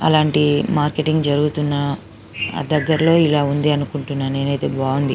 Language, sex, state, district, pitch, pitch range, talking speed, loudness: Telugu, female, Telangana, Karimnagar, 145 Hz, 140-150 Hz, 105 wpm, -18 LUFS